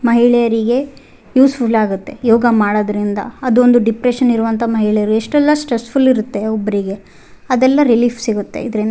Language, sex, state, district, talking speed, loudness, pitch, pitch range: Kannada, female, Karnataka, Raichur, 115 wpm, -14 LUFS, 235 Hz, 215-250 Hz